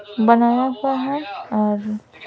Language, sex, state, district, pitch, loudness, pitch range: Hindi, female, Bihar, Patna, 235 Hz, -19 LUFS, 215-270 Hz